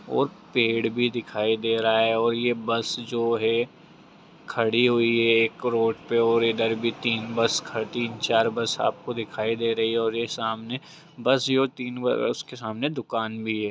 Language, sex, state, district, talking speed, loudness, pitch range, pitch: Hindi, male, Jharkhand, Jamtara, 185 wpm, -24 LUFS, 115-120 Hz, 115 Hz